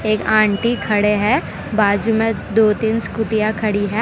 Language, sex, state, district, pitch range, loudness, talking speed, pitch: Hindi, female, Gujarat, Valsad, 210-225 Hz, -17 LUFS, 150 wpm, 215 Hz